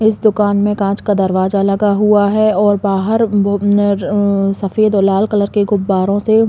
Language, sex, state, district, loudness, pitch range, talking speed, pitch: Hindi, female, Chhattisgarh, Balrampur, -14 LUFS, 195-210 Hz, 185 wpm, 205 Hz